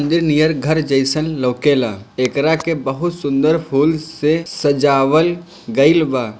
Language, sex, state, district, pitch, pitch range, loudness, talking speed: Bhojpuri, male, Bihar, Gopalganj, 150 Hz, 135-160 Hz, -16 LUFS, 130 wpm